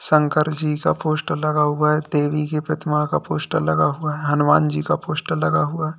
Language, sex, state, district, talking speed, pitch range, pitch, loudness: Hindi, male, Uttar Pradesh, Lalitpur, 220 wpm, 145-155 Hz, 150 Hz, -20 LUFS